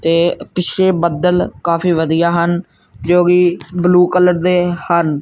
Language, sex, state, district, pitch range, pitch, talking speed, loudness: Punjabi, male, Punjab, Kapurthala, 170-180 Hz, 175 Hz, 140 wpm, -14 LUFS